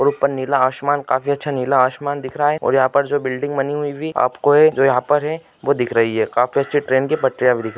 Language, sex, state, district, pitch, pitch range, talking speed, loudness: Hindi, male, Andhra Pradesh, Anantapur, 140 Hz, 130-145 Hz, 155 wpm, -18 LUFS